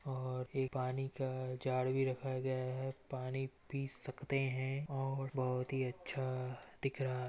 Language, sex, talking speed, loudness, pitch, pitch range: Maithili, female, 175 wpm, -40 LUFS, 130 Hz, 130-135 Hz